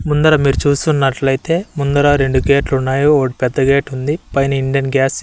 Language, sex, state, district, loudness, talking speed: Telugu, male, Andhra Pradesh, Annamaya, -15 LUFS, 160 wpm